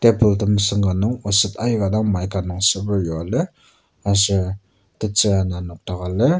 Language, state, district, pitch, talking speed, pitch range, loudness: Ao, Nagaland, Kohima, 100 Hz, 160 wpm, 95-110 Hz, -20 LUFS